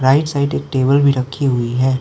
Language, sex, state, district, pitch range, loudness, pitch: Hindi, male, Arunachal Pradesh, Lower Dibang Valley, 130-140 Hz, -16 LUFS, 135 Hz